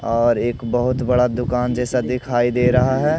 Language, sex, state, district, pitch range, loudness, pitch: Hindi, male, Odisha, Malkangiri, 120-125 Hz, -19 LUFS, 125 Hz